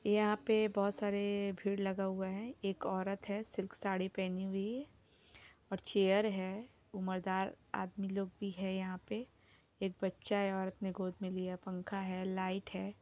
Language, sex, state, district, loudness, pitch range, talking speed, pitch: Hindi, female, Jharkhand, Sahebganj, -38 LUFS, 190-200 Hz, 175 wpm, 195 Hz